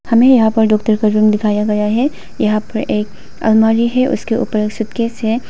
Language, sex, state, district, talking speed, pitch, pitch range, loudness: Hindi, female, Arunachal Pradesh, Papum Pare, 195 wpm, 220 Hz, 215-230 Hz, -14 LUFS